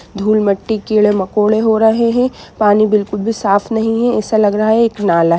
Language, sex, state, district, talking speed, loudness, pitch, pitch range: Hindi, female, Jharkhand, Sahebganj, 200 wpm, -14 LUFS, 215 Hz, 205-225 Hz